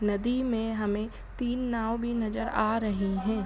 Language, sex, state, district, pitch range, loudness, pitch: Hindi, female, Bihar, Saran, 210-235 Hz, -30 LUFS, 225 Hz